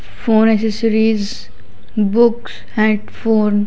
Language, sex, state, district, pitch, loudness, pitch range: Hindi, female, Odisha, Khordha, 220 Hz, -16 LUFS, 210-225 Hz